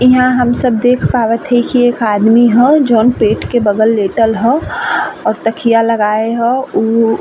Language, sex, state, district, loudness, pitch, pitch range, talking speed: Bhojpuri, female, Uttar Pradesh, Ghazipur, -12 LUFS, 235 Hz, 225-250 Hz, 175 wpm